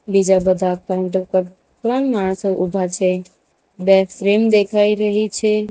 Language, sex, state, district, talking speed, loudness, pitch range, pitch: Gujarati, female, Gujarat, Valsad, 135 wpm, -17 LUFS, 185-210 Hz, 195 Hz